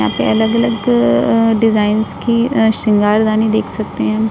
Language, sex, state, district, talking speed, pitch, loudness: Hindi, female, Uttar Pradesh, Budaun, 180 wpm, 220 Hz, -13 LUFS